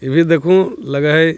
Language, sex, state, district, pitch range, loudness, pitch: Hindi, male, Bihar, Jahanabad, 150-165 Hz, -14 LUFS, 165 Hz